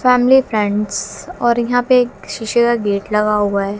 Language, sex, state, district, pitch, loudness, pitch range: Hindi, female, Haryana, Jhajjar, 215 Hz, -16 LUFS, 205-245 Hz